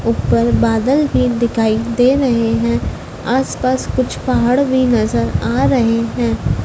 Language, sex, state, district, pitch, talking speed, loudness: Hindi, female, Madhya Pradesh, Dhar, 225 Hz, 135 wpm, -15 LUFS